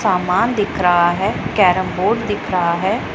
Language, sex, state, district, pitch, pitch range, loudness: Hindi, female, Punjab, Pathankot, 185 Hz, 175-210 Hz, -17 LUFS